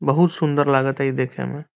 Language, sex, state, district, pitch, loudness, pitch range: Bhojpuri, male, Bihar, Saran, 140 Hz, -20 LUFS, 135-155 Hz